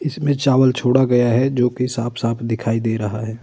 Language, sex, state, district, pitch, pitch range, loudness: Hindi, male, Uttar Pradesh, Budaun, 125 Hz, 115-130 Hz, -18 LUFS